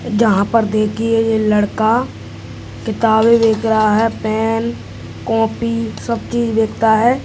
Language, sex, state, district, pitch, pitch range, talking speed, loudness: Hindi, male, Uttar Pradesh, Etah, 225 Hz, 215-230 Hz, 125 wpm, -15 LUFS